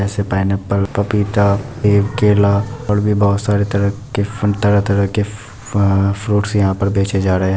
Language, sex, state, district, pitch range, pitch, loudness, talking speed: Hindi, male, Bihar, Muzaffarpur, 100-105 Hz, 100 Hz, -16 LUFS, 165 wpm